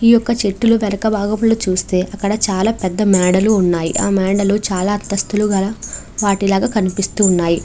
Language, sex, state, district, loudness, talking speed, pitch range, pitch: Telugu, female, Andhra Pradesh, Chittoor, -16 LUFS, 125 wpm, 190-215 Hz, 200 Hz